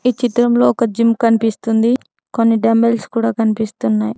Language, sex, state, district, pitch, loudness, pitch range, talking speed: Telugu, female, Telangana, Mahabubabad, 230 Hz, -15 LUFS, 220-235 Hz, 130 wpm